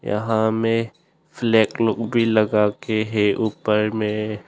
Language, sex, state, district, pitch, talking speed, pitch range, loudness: Hindi, male, Arunachal Pradesh, Longding, 110 Hz, 120 wpm, 105-115 Hz, -20 LUFS